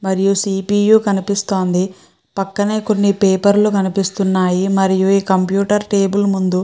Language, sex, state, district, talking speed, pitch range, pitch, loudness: Telugu, female, Andhra Pradesh, Chittoor, 125 wpm, 190-200 Hz, 195 Hz, -15 LUFS